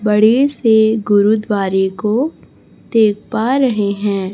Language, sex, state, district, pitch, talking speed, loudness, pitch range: Hindi, female, Chhattisgarh, Raipur, 215 Hz, 110 wpm, -15 LUFS, 205-225 Hz